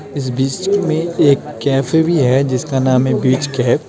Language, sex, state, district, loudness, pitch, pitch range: Hindi, male, West Bengal, Alipurduar, -15 LUFS, 135 Hz, 130-155 Hz